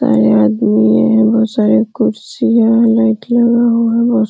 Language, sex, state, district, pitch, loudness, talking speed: Hindi, female, Uttar Pradesh, Hamirpur, 220 Hz, -12 LUFS, 85 wpm